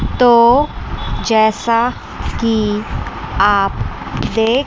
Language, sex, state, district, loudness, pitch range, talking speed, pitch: Hindi, female, Chandigarh, Chandigarh, -15 LUFS, 215-235 Hz, 65 wpm, 225 Hz